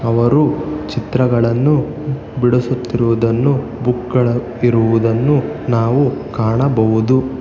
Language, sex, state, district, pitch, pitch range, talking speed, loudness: Kannada, male, Karnataka, Bangalore, 125 Hz, 115-135 Hz, 65 wpm, -16 LUFS